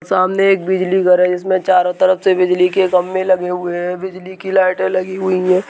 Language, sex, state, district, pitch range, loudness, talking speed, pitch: Hindi, male, Uttar Pradesh, Jyotiba Phule Nagar, 180-190 Hz, -15 LUFS, 220 wpm, 185 Hz